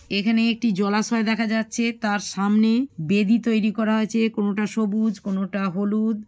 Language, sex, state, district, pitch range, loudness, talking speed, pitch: Bengali, female, West Bengal, Malda, 205-225 Hz, -22 LUFS, 145 wpm, 220 Hz